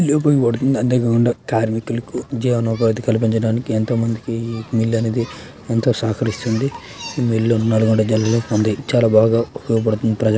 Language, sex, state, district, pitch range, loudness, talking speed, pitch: Telugu, male, Telangana, Nalgonda, 110-120 Hz, -18 LUFS, 105 wpm, 115 Hz